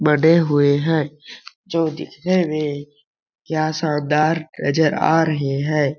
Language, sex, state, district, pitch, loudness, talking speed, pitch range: Hindi, male, Chhattisgarh, Balrampur, 155 Hz, -19 LUFS, 130 wpm, 145-160 Hz